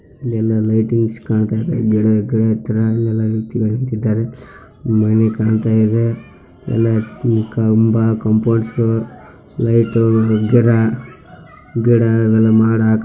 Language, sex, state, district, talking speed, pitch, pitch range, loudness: Kannada, male, Karnataka, Raichur, 80 wpm, 110 Hz, 110-115 Hz, -16 LUFS